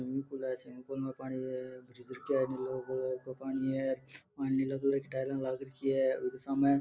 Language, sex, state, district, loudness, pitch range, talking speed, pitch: Marwari, male, Rajasthan, Nagaur, -35 LUFS, 130-135 Hz, 175 wpm, 130 Hz